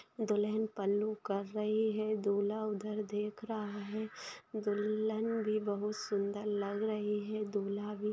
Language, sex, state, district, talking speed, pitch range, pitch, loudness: Hindi, female, Bihar, Saran, 140 wpm, 205-215 Hz, 210 Hz, -36 LUFS